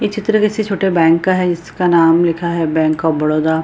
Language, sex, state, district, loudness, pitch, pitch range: Hindi, female, Bihar, Purnia, -14 LUFS, 170 Hz, 160-190 Hz